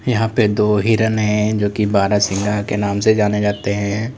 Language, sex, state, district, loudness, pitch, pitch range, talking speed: Hindi, male, Uttar Pradesh, Lalitpur, -17 LUFS, 105 Hz, 100-110 Hz, 185 wpm